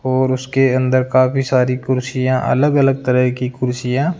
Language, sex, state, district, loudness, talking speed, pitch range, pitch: Hindi, male, Rajasthan, Jaipur, -16 LUFS, 155 wpm, 125-135 Hz, 130 Hz